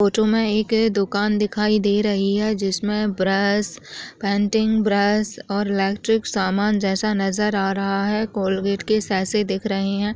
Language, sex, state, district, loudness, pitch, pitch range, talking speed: Chhattisgarhi, female, Chhattisgarh, Jashpur, -21 LUFS, 205 Hz, 195-215 Hz, 155 wpm